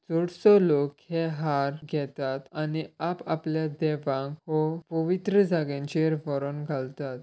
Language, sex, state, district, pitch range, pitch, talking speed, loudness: Konkani, male, Goa, North and South Goa, 140-165 Hz, 155 Hz, 115 wpm, -27 LUFS